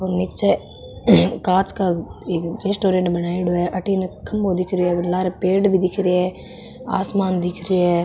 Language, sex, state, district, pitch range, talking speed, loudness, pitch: Marwari, female, Rajasthan, Nagaur, 175-190 Hz, 170 wpm, -20 LUFS, 185 Hz